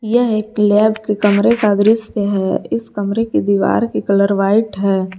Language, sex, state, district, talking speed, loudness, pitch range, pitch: Hindi, female, Jharkhand, Garhwa, 185 wpm, -15 LUFS, 200-220 Hz, 210 Hz